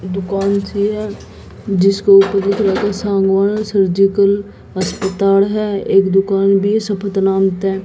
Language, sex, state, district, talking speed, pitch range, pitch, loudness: Hindi, female, Haryana, Jhajjar, 140 wpm, 195-200 Hz, 195 Hz, -15 LUFS